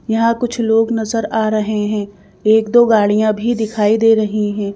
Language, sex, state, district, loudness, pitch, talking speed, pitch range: Hindi, female, Madhya Pradesh, Bhopal, -15 LUFS, 220 Hz, 190 wpm, 210-225 Hz